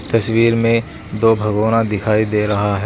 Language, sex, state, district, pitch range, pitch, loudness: Hindi, male, Jharkhand, Garhwa, 105-115 Hz, 110 Hz, -16 LUFS